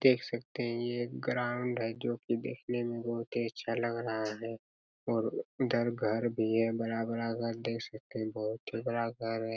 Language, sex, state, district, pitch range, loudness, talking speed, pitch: Hindi, male, Chhattisgarh, Raigarh, 115-120 Hz, -35 LUFS, 200 wpm, 115 Hz